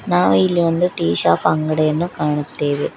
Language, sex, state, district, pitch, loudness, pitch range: Kannada, female, Karnataka, Koppal, 155 Hz, -17 LUFS, 110-170 Hz